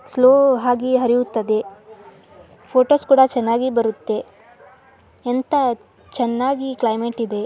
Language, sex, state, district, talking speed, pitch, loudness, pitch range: Kannada, male, Karnataka, Dharwad, 90 wpm, 245 Hz, -18 LUFS, 230-260 Hz